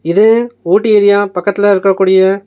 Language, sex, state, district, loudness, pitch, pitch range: Tamil, male, Tamil Nadu, Nilgiris, -11 LUFS, 200 Hz, 190-205 Hz